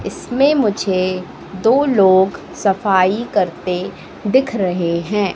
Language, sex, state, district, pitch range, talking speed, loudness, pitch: Hindi, female, Madhya Pradesh, Katni, 185-230 Hz, 100 wpm, -16 LUFS, 195 Hz